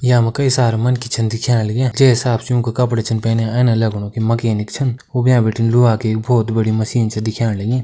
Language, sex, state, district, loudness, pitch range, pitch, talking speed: Kumaoni, male, Uttarakhand, Uttarkashi, -16 LUFS, 110-125 Hz, 115 Hz, 220 wpm